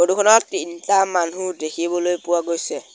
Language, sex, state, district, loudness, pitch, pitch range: Assamese, male, Assam, Sonitpur, -19 LUFS, 180 Hz, 170-200 Hz